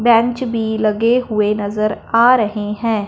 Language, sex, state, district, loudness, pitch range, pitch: Hindi, female, Punjab, Fazilka, -16 LUFS, 210-235 Hz, 220 Hz